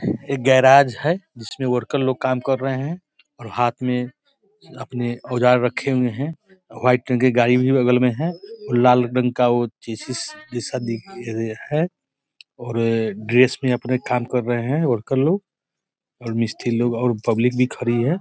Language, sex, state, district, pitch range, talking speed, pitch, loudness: Hindi, male, Bihar, East Champaran, 120-135 Hz, 175 wpm, 125 Hz, -20 LUFS